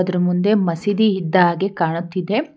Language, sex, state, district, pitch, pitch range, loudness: Kannada, female, Karnataka, Bangalore, 185 Hz, 175-205 Hz, -18 LUFS